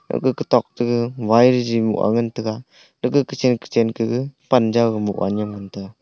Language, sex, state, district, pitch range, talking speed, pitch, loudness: Wancho, male, Arunachal Pradesh, Longding, 110-125 Hz, 180 wpm, 115 Hz, -19 LUFS